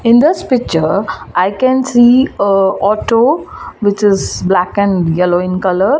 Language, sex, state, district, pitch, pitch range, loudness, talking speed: English, female, Gujarat, Valsad, 200 Hz, 185-240 Hz, -12 LUFS, 150 wpm